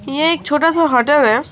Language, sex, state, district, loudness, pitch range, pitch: Hindi, female, West Bengal, Alipurduar, -14 LUFS, 290-325 Hz, 300 Hz